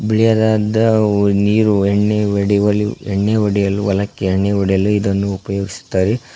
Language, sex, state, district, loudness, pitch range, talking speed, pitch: Kannada, male, Karnataka, Koppal, -16 LUFS, 100-110 Hz, 105 wpm, 100 Hz